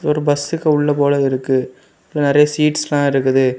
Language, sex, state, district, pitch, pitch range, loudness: Tamil, male, Tamil Nadu, Kanyakumari, 145 Hz, 135-150 Hz, -16 LUFS